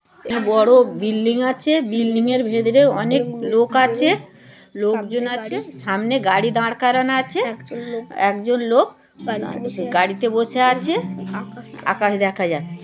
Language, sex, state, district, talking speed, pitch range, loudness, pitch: Bengali, female, West Bengal, Jhargram, 105 wpm, 210-255 Hz, -19 LUFS, 230 Hz